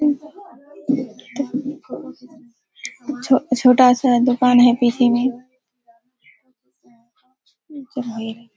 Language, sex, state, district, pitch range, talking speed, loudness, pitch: Hindi, female, Bihar, Kishanganj, 245-280 Hz, 50 wpm, -18 LUFS, 255 Hz